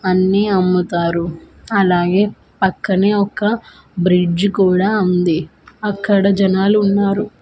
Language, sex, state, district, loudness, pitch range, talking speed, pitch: Telugu, female, Andhra Pradesh, Manyam, -16 LUFS, 180-200 Hz, 90 wpm, 190 Hz